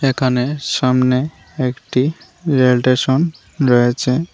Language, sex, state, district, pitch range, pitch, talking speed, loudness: Bengali, male, Tripura, West Tripura, 125-140 Hz, 130 Hz, 85 wpm, -16 LUFS